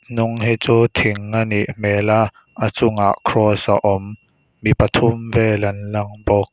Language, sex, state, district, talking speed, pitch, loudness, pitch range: Mizo, male, Mizoram, Aizawl, 185 wpm, 105 Hz, -18 LUFS, 100-115 Hz